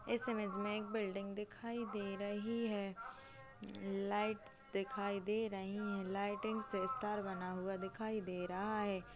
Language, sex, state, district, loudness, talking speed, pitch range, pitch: Hindi, female, Chhattisgarh, Kabirdham, -42 LUFS, 145 wpm, 195-215 Hz, 200 Hz